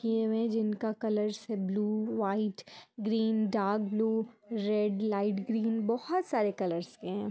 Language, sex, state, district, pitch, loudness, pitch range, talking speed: Hindi, female, Andhra Pradesh, Chittoor, 215 Hz, -32 LUFS, 205-225 Hz, 140 wpm